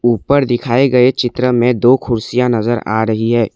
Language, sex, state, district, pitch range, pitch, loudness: Hindi, male, Assam, Kamrup Metropolitan, 115-125 Hz, 120 Hz, -14 LUFS